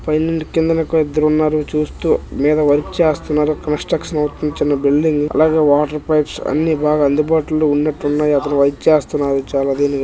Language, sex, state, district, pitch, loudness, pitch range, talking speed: Telugu, male, Karnataka, Dharwad, 150 Hz, -16 LUFS, 145-155 Hz, 145 wpm